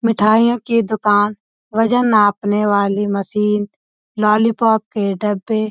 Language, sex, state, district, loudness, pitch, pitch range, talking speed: Hindi, female, Uttarakhand, Uttarkashi, -16 LUFS, 210 Hz, 205-225 Hz, 115 wpm